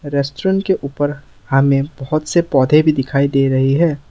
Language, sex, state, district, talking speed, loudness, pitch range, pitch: Hindi, male, Assam, Sonitpur, 175 wpm, -16 LUFS, 135-155 Hz, 140 Hz